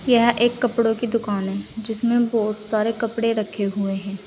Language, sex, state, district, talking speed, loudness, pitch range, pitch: Hindi, female, Uttar Pradesh, Saharanpur, 185 wpm, -22 LUFS, 205-235 Hz, 225 Hz